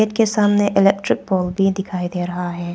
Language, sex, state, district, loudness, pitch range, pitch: Hindi, female, Arunachal Pradesh, Papum Pare, -18 LUFS, 180-205 Hz, 195 Hz